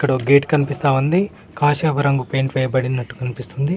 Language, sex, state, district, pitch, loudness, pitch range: Telugu, male, Telangana, Mahabubabad, 140 Hz, -19 LUFS, 130-145 Hz